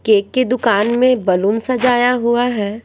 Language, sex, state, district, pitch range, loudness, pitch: Hindi, female, Bihar, Patna, 210-250 Hz, -15 LUFS, 235 Hz